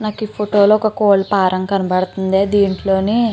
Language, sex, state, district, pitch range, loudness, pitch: Telugu, female, Andhra Pradesh, Chittoor, 190-210 Hz, -15 LUFS, 200 Hz